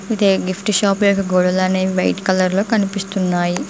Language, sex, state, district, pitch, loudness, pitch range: Telugu, female, Telangana, Mahabubabad, 190 Hz, -17 LUFS, 185-200 Hz